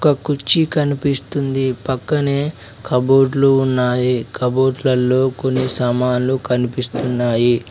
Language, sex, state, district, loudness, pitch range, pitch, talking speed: Telugu, male, Telangana, Mahabubabad, -17 LUFS, 125-135 Hz, 130 Hz, 85 wpm